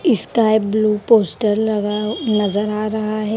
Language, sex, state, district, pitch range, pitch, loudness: Hindi, female, Haryana, Rohtak, 210-220 Hz, 215 Hz, -17 LUFS